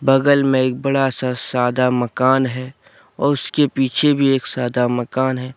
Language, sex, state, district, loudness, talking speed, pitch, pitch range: Hindi, male, Jharkhand, Deoghar, -18 LUFS, 170 wpm, 130 Hz, 125-135 Hz